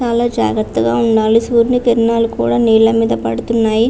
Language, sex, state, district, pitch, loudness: Telugu, female, Andhra Pradesh, Visakhapatnam, 220 Hz, -14 LUFS